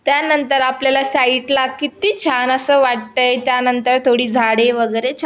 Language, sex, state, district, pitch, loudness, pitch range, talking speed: Marathi, female, Maharashtra, Aurangabad, 260 Hz, -15 LUFS, 250-275 Hz, 160 wpm